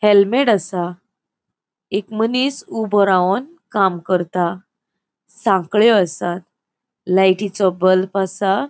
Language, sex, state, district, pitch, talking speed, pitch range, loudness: Konkani, female, Goa, North and South Goa, 195 Hz, 90 wpm, 185-220 Hz, -17 LUFS